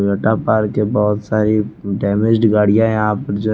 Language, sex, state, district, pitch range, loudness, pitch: Hindi, male, Chandigarh, Chandigarh, 105-110 Hz, -16 LUFS, 105 Hz